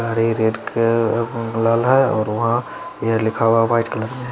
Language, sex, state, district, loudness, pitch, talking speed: Hindi, male, Chandigarh, Chandigarh, -18 LUFS, 115 Hz, 180 wpm